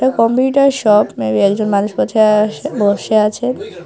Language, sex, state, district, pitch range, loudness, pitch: Bengali, female, Tripura, Unakoti, 210-260 Hz, -14 LUFS, 215 Hz